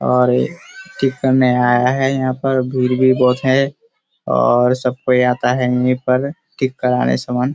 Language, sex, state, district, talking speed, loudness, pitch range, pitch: Hindi, male, Bihar, Kishanganj, 165 wpm, -16 LUFS, 125-135 Hz, 125 Hz